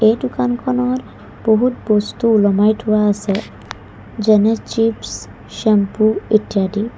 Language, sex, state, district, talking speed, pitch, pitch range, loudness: Assamese, female, Assam, Kamrup Metropolitan, 95 wpm, 215 Hz, 205-225 Hz, -16 LUFS